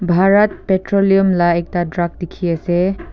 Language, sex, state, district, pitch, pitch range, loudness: Nagamese, female, Nagaland, Kohima, 180 Hz, 175-195 Hz, -16 LUFS